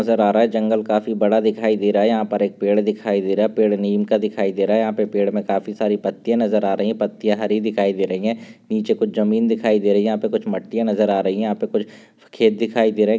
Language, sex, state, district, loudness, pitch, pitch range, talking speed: Hindi, male, Maharashtra, Dhule, -19 LUFS, 105 Hz, 100-110 Hz, 300 wpm